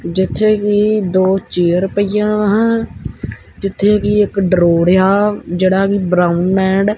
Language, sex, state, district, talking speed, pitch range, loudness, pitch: Punjabi, male, Punjab, Kapurthala, 135 wpm, 185-210 Hz, -14 LUFS, 195 Hz